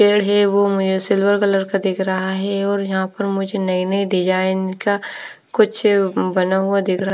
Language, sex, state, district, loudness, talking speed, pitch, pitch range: Hindi, female, Punjab, Fazilka, -18 LUFS, 195 wpm, 195 Hz, 190-200 Hz